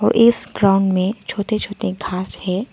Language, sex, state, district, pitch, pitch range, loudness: Hindi, female, Arunachal Pradesh, Lower Dibang Valley, 200 Hz, 190-215 Hz, -18 LUFS